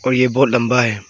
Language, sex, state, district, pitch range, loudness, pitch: Hindi, male, Arunachal Pradesh, Longding, 120-130 Hz, -15 LUFS, 125 Hz